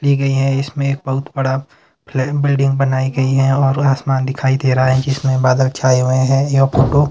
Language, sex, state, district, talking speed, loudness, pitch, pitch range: Hindi, male, Himachal Pradesh, Shimla, 210 wpm, -15 LUFS, 135 Hz, 130-140 Hz